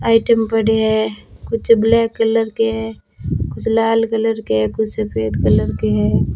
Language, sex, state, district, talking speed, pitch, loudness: Hindi, female, Rajasthan, Bikaner, 160 wpm, 220 Hz, -17 LUFS